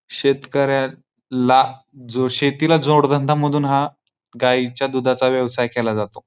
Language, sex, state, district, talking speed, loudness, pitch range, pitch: Marathi, male, Maharashtra, Pune, 115 wpm, -18 LUFS, 125-145 Hz, 135 Hz